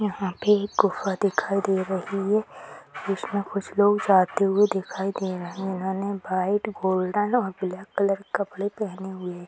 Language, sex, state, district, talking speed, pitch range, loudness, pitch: Hindi, female, Bihar, Jahanabad, 185 wpm, 190-205 Hz, -25 LUFS, 195 Hz